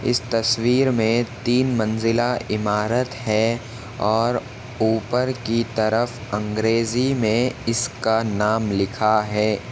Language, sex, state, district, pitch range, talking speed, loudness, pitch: Hindi, male, Maharashtra, Nagpur, 110-120 Hz, 105 wpm, -21 LUFS, 115 Hz